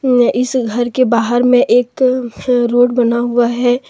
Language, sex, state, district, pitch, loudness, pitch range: Hindi, female, Jharkhand, Deoghar, 245 Hz, -13 LUFS, 240-255 Hz